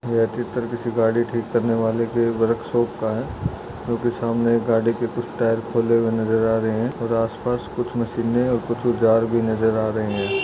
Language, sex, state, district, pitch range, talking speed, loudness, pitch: Hindi, male, Uttar Pradesh, Budaun, 115-120 Hz, 205 wpm, -22 LUFS, 115 Hz